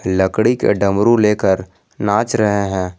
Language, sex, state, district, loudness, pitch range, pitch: Hindi, male, Jharkhand, Garhwa, -16 LUFS, 95-110 Hz, 100 Hz